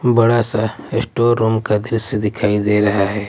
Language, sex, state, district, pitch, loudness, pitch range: Hindi, male, Punjab, Pathankot, 110 Hz, -17 LUFS, 105-115 Hz